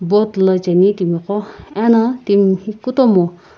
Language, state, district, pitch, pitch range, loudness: Sumi, Nagaland, Kohima, 200 Hz, 185-220 Hz, -15 LUFS